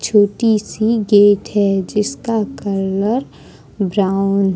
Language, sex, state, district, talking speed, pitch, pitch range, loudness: Hindi, female, Jharkhand, Ranchi, 105 wpm, 205 Hz, 195-215 Hz, -16 LUFS